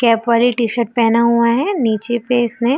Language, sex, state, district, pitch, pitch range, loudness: Hindi, female, Jharkhand, Sahebganj, 235 Hz, 230-240 Hz, -15 LUFS